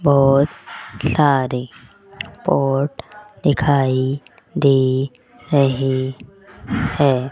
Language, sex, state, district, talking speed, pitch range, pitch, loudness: Hindi, female, Rajasthan, Jaipur, 55 wpm, 130-145 Hz, 135 Hz, -18 LUFS